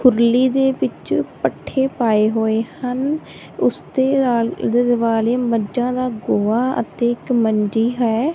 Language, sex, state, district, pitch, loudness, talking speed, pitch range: Punjabi, female, Punjab, Kapurthala, 240 Hz, -18 LUFS, 120 wpm, 225-255 Hz